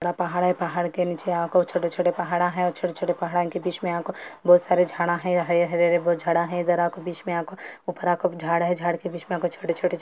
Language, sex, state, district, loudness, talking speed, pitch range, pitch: Hindi, female, Andhra Pradesh, Anantapur, -24 LUFS, 115 wpm, 175-180 Hz, 175 Hz